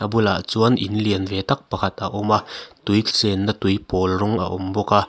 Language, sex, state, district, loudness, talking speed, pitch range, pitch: Mizo, male, Mizoram, Aizawl, -21 LUFS, 235 wpm, 95-105 Hz, 105 Hz